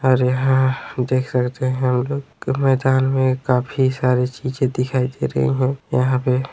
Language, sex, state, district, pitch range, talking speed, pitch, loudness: Hindi, male, Chhattisgarh, Raigarh, 125-130 Hz, 165 wpm, 130 Hz, -19 LUFS